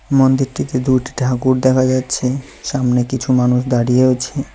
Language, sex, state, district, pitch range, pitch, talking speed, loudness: Bengali, male, West Bengal, Cooch Behar, 125-130 Hz, 130 Hz, 130 wpm, -16 LUFS